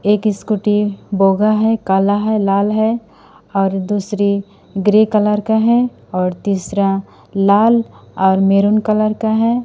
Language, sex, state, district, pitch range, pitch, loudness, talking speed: Hindi, female, Assam, Sonitpur, 195-215 Hz, 205 Hz, -15 LUFS, 135 wpm